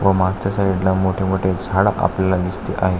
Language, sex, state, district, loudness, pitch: Marathi, male, Maharashtra, Aurangabad, -19 LUFS, 95 Hz